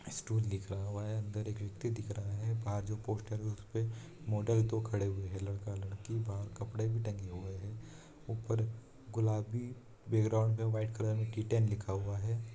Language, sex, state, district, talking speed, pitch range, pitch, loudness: Hindi, male, Bihar, Saharsa, 180 wpm, 105-115 Hz, 110 Hz, -37 LUFS